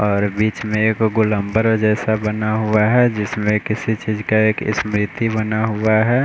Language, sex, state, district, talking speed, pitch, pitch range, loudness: Hindi, male, Bihar, West Champaran, 175 wpm, 110 Hz, 105-110 Hz, -18 LUFS